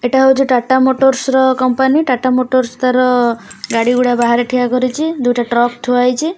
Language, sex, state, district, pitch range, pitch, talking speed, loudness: Odia, female, Odisha, Khordha, 245-265 Hz, 255 Hz, 170 wpm, -13 LUFS